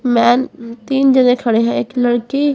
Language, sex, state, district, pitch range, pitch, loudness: Hindi, female, Haryana, Charkhi Dadri, 235-265 Hz, 245 Hz, -14 LUFS